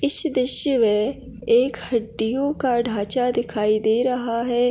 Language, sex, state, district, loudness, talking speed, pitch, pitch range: Hindi, female, Chhattisgarh, Kabirdham, -20 LUFS, 140 wpm, 240 Hz, 225-255 Hz